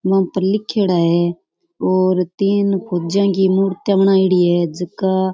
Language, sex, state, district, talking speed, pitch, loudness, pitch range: Rajasthani, female, Rajasthan, Churu, 145 wpm, 190 Hz, -16 LUFS, 180-195 Hz